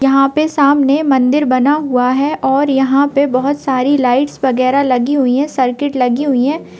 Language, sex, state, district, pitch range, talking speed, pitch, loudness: Hindi, female, Bihar, Purnia, 255-285 Hz, 185 wpm, 275 Hz, -13 LUFS